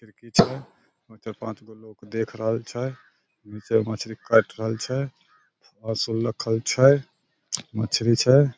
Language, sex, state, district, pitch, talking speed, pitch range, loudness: Maithili, male, Bihar, Samastipur, 115 Hz, 140 wpm, 110-120 Hz, -24 LUFS